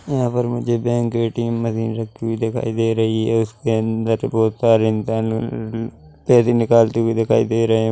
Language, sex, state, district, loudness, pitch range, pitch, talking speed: Hindi, male, Chhattisgarh, Rajnandgaon, -19 LUFS, 110-115 Hz, 115 Hz, 190 wpm